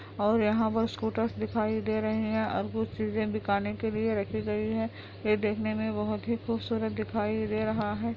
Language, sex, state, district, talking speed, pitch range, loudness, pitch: Hindi, female, Andhra Pradesh, Anantapur, 200 wpm, 205-220 Hz, -30 LUFS, 215 Hz